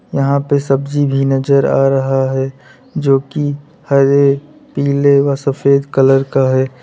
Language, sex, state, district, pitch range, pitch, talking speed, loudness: Hindi, male, Uttar Pradesh, Lalitpur, 135-140 Hz, 140 Hz, 150 wpm, -14 LUFS